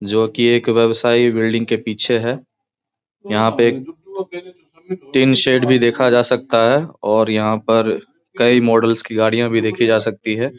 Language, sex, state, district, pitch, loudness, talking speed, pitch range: Hindi, male, Bihar, Samastipur, 120 Hz, -15 LUFS, 170 wpm, 110-130 Hz